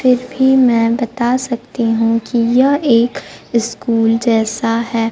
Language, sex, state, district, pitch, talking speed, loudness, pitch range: Hindi, female, Bihar, Kaimur, 235 Hz, 140 wpm, -15 LUFS, 230-250 Hz